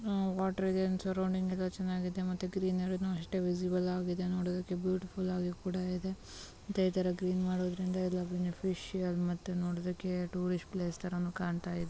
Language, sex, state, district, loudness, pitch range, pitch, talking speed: Kannada, female, Karnataka, Mysore, -35 LUFS, 180-185 Hz, 185 Hz, 125 wpm